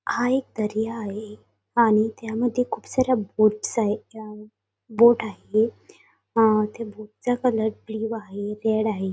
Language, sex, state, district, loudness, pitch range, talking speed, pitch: Marathi, female, Maharashtra, Sindhudurg, -23 LUFS, 215-230 Hz, 125 wpm, 220 Hz